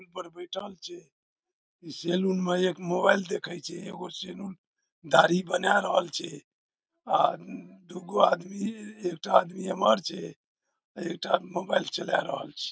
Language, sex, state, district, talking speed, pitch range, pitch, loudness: Maithili, male, Bihar, Darbhanga, 135 wpm, 180-200 Hz, 185 Hz, -28 LUFS